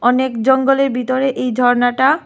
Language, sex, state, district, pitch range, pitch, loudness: Bengali, female, Tripura, West Tripura, 245-265 Hz, 255 Hz, -15 LUFS